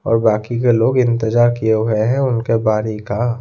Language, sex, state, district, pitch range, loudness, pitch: Hindi, male, Odisha, Khordha, 110-120 Hz, -16 LUFS, 115 Hz